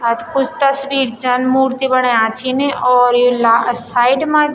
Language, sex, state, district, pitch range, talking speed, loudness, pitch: Garhwali, female, Uttarakhand, Tehri Garhwal, 245-275 Hz, 185 wpm, -14 LUFS, 255 Hz